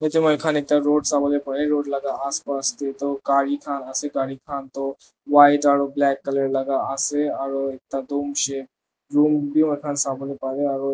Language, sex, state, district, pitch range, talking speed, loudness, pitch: Nagamese, male, Nagaland, Dimapur, 135-145 Hz, 210 wpm, -22 LUFS, 140 Hz